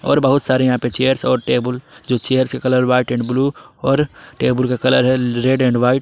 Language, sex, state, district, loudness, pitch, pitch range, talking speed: Hindi, male, Jharkhand, Palamu, -17 LUFS, 130 Hz, 125-130 Hz, 240 wpm